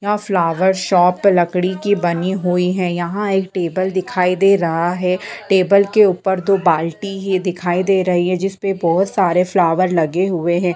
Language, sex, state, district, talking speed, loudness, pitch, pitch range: Hindi, female, Bihar, Purnia, 185 wpm, -16 LUFS, 185 Hz, 175-195 Hz